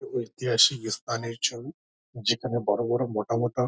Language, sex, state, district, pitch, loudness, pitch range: Bengali, male, West Bengal, Dakshin Dinajpur, 120 Hz, -26 LUFS, 115-125 Hz